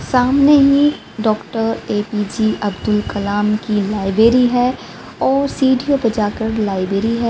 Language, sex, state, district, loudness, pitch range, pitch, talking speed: Hindi, female, Haryana, Rohtak, -16 LUFS, 210-250 Hz, 220 Hz, 125 wpm